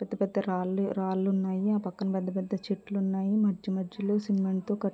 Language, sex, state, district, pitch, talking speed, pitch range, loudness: Telugu, female, Andhra Pradesh, Krishna, 195 Hz, 180 wpm, 190-205 Hz, -30 LUFS